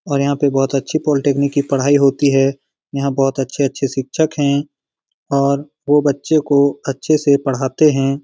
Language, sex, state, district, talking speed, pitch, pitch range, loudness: Hindi, male, Bihar, Lakhisarai, 165 wpm, 140 Hz, 135-145 Hz, -16 LUFS